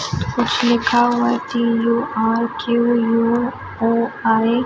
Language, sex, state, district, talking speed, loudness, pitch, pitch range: Hindi, male, Chhattisgarh, Raipur, 115 wpm, -18 LUFS, 235 Hz, 230-240 Hz